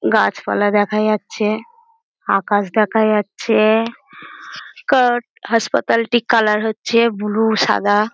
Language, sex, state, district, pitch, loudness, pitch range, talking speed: Bengali, female, West Bengal, North 24 Parganas, 220 Hz, -17 LUFS, 210-240 Hz, 95 wpm